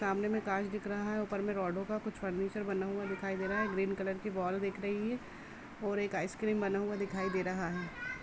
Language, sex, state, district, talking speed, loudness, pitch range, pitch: Hindi, female, Uttar Pradesh, Jalaun, 255 wpm, -36 LUFS, 195-210 Hz, 200 Hz